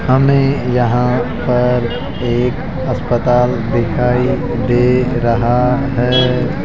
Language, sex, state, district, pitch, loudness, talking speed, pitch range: Hindi, male, Rajasthan, Jaipur, 125 Hz, -15 LUFS, 80 wpm, 120-125 Hz